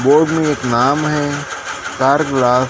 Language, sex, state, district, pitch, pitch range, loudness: Hindi, male, Maharashtra, Gondia, 145 Hz, 130-150 Hz, -16 LUFS